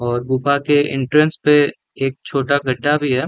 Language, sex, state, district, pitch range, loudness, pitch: Hindi, male, Chhattisgarh, Raigarh, 130-145 Hz, -17 LUFS, 140 Hz